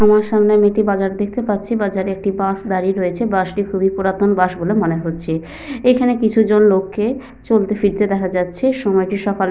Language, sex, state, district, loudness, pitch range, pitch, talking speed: Bengali, female, Jharkhand, Sahebganj, -17 LUFS, 190-215 Hz, 200 Hz, 195 wpm